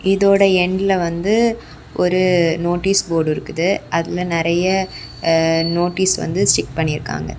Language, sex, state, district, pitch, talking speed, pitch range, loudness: Tamil, female, Tamil Nadu, Kanyakumari, 175 Hz, 115 wpm, 165-190 Hz, -17 LUFS